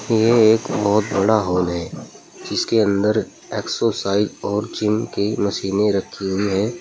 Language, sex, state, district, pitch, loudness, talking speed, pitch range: Hindi, male, Uttar Pradesh, Saharanpur, 105 Hz, -19 LUFS, 140 wpm, 100-110 Hz